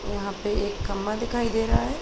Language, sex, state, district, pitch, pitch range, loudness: Hindi, female, Uttar Pradesh, Muzaffarnagar, 210 Hz, 200-235 Hz, -27 LUFS